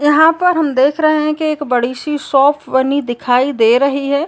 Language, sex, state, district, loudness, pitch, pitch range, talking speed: Hindi, female, Uttar Pradesh, Gorakhpur, -14 LUFS, 280 Hz, 260-305 Hz, 225 wpm